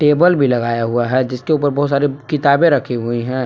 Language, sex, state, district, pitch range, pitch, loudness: Hindi, male, Jharkhand, Palamu, 120-145 Hz, 135 Hz, -16 LUFS